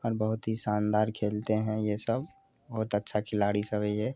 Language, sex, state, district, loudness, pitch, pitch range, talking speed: Maithili, male, Bihar, Supaul, -30 LUFS, 110 Hz, 105-110 Hz, 200 wpm